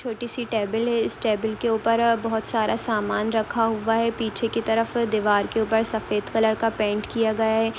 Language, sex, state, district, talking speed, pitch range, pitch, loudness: Hindi, female, Uttar Pradesh, Budaun, 215 wpm, 220-230 Hz, 225 Hz, -23 LUFS